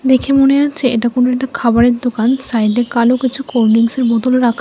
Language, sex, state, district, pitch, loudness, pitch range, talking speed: Bengali, female, Tripura, West Tripura, 245 Hz, -13 LUFS, 235-260 Hz, 180 wpm